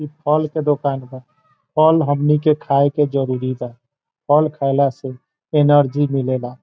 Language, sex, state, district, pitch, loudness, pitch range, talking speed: Bhojpuri, male, Bihar, Saran, 140 Hz, -17 LUFS, 130-150 Hz, 180 wpm